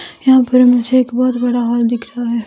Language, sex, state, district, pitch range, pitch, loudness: Hindi, female, Himachal Pradesh, Shimla, 235-255 Hz, 245 Hz, -13 LUFS